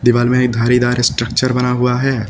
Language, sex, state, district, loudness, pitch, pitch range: Hindi, male, Uttar Pradesh, Lucknow, -15 LUFS, 125 Hz, 120-125 Hz